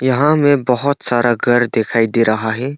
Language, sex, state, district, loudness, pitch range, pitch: Hindi, male, Arunachal Pradesh, Longding, -14 LUFS, 115-140 Hz, 120 Hz